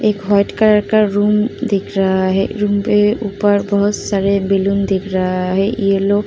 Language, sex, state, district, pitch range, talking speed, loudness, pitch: Hindi, female, Uttar Pradesh, Muzaffarnagar, 195-210 Hz, 180 wpm, -15 LUFS, 200 Hz